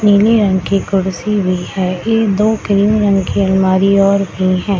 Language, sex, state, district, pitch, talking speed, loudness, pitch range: Hindi, female, Bihar, Samastipur, 195 Hz, 185 wpm, -13 LUFS, 190-205 Hz